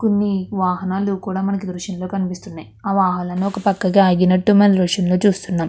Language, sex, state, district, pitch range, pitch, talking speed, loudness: Telugu, female, Andhra Pradesh, Krishna, 180-200 Hz, 190 Hz, 135 wpm, -18 LUFS